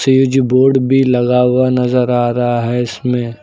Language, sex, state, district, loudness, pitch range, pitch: Hindi, male, Uttar Pradesh, Lucknow, -13 LUFS, 120-130 Hz, 125 Hz